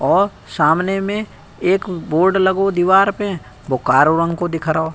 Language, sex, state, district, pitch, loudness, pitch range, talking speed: Hindi, male, Uttar Pradesh, Budaun, 180 Hz, -17 LUFS, 160-195 Hz, 170 wpm